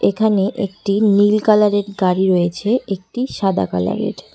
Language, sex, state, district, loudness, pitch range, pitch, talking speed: Bengali, female, West Bengal, Cooch Behar, -17 LUFS, 185-210 Hz, 200 Hz, 125 wpm